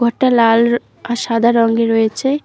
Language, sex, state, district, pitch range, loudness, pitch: Bengali, female, West Bengal, Cooch Behar, 230-240 Hz, -14 LUFS, 235 Hz